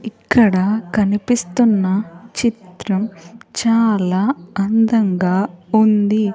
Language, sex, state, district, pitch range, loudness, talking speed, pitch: Telugu, female, Andhra Pradesh, Sri Satya Sai, 190-225 Hz, -17 LUFS, 55 wpm, 210 Hz